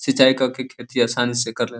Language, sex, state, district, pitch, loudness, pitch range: Bhojpuri, male, Uttar Pradesh, Deoria, 120 Hz, -20 LUFS, 120-130 Hz